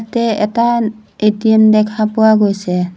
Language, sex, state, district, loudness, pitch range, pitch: Assamese, female, Assam, Sonitpur, -13 LUFS, 210-220 Hz, 215 Hz